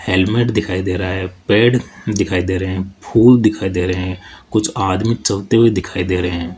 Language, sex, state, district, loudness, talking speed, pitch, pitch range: Hindi, male, Rajasthan, Jaipur, -16 LUFS, 210 wpm, 95 Hz, 90-110 Hz